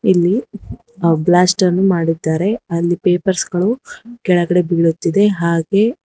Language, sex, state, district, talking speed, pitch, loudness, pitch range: Kannada, female, Karnataka, Bangalore, 100 wpm, 180 Hz, -15 LUFS, 170-205 Hz